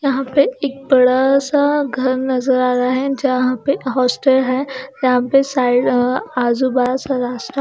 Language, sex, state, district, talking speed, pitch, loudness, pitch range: Hindi, female, Chandigarh, Chandigarh, 165 wpm, 260 Hz, -16 LUFS, 255-275 Hz